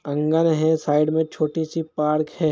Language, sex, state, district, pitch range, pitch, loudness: Hindi, male, Jharkhand, Jamtara, 150-160 Hz, 155 Hz, -21 LUFS